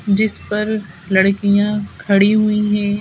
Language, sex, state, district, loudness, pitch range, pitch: Hindi, female, Madhya Pradesh, Bhopal, -16 LUFS, 200-210 Hz, 205 Hz